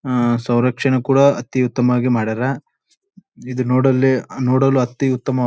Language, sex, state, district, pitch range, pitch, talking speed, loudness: Kannada, male, Karnataka, Bijapur, 125-135 Hz, 130 Hz, 130 wpm, -17 LUFS